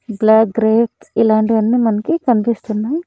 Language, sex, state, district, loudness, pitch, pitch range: Telugu, female, Andhra Pradesh, Annamaya, -15 LUFS, 225 Hz, 220-235 Hz